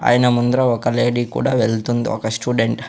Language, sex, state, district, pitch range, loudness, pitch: Telugu, male, Andhra Pradesh, Sri Satya Sai, 115-125 Hz, -18 LUFS, 120 Hz